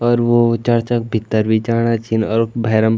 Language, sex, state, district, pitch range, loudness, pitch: Garhwali, male, Uttarakhand, Tehri Garhwal, 110-120 Hz, -16 LUFS, 115 Hz